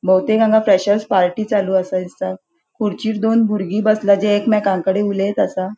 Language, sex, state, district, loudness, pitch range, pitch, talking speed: Konkani, female, Goa, North and South Goa, -17 LUFS, 190-220 Hz, 205 Hz, 155 wpm